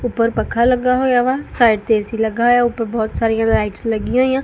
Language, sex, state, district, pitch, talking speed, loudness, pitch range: Punjabi, female, Punjab, Kapurthala, 230 Hz, 230 wpm, -16 LUFS, 225-245 Hz